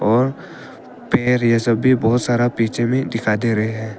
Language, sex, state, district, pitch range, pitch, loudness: Hindi, male, Arunachal Pradesh, Papum Pare, 110-125 Hz, 115 Hz, -18 LUFS